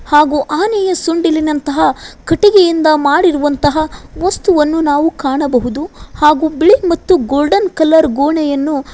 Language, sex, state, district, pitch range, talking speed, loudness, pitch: Kannada, female, Karnataka, Koppal, 290-340 Hz, 100 wpm, -12 LUFS, 310 Hz